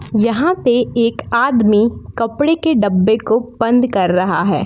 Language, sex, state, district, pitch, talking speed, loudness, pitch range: Hindi, female, Jharkhand, Palamu, 230 Hz, 155 wpm, -15 LUFS, 210-250 Hz